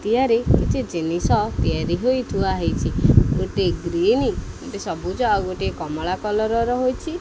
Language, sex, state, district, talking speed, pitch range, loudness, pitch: Odia, male, Odisha, Khordha, 125 wpm, 175-255 Hz, -21 LUFS, 220 Hz